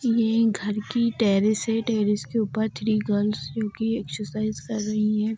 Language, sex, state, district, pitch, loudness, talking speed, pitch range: Hindi, female, Bihar, Darbhanga, 215 Hz, -25 LUFS, 180 wpm, 210-225 Hz